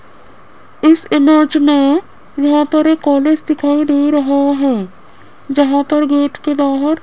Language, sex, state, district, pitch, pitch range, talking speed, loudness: Hindi, female, Rajasthan, Jaipur, 295 Hz, 285-305 Hz, 145 wpm, -13 LUFS